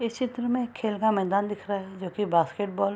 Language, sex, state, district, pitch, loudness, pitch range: Hindi, female, Bihar, Kishanganj, 205 Hz, -27 LUFS, 195-225 Hz